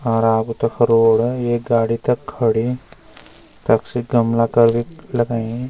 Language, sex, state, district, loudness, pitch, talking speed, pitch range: Garhwali, male, Uttarakhand, Uttarkashi, -18 LUFS, 120 Hz, 135 wpm, 115-125 Hz